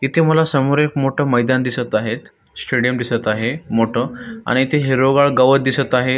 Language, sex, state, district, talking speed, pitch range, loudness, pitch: Marathi, male, Maharashtra, Solapur, 175 wpm, 125-145 Hz, -17 LUFS, 130 Hz